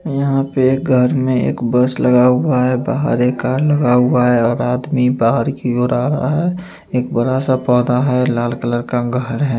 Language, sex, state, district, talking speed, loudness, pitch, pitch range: Hindi, male, Chandigarh, Chandigarh, 215 wpm, -15 LUFS, 125 Hz, 125-135 Hz